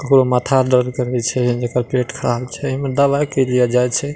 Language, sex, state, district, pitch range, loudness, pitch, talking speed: Maithili, male, Bihar, Madhepura, 125-135 Hz, -17 LUFS, 125 Hz, 230 wpm